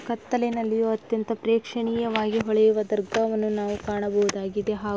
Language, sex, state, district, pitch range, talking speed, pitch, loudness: Kannada, female, Karnataka, Raichur, 210-230 Hz, 110 wpm, 220 Hz, -25 LUFS